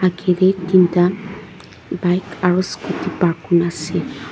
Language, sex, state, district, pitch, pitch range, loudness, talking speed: Nagamese, female, Nagaland, Dimapur, 180 Hz, 175-185 Hz, -18 LUFS, 125 wpm